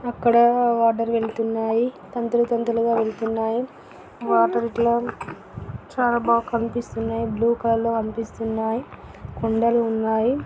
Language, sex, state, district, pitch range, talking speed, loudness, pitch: Telugu, female, Andhra Pradesh, Guntur, 225-235 Hz, 95 wpm, -22 LUFS, 230 Hz